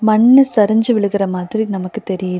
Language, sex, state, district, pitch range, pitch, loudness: Tamil, female, Tamil Nadu, Nilgiris, 190-220 Hz, 210 Hz, -15 LUFS